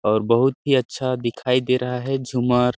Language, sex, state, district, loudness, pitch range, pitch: Hindi, male, Chhattisgarh, Sarguja, -21 LUFS, 125-130 Hz, 125 Hz